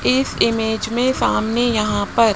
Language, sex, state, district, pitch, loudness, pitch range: Hindi, male, Rajasthan, Jaipur, 225 Hz, -18 LUFS, 220-240 Hz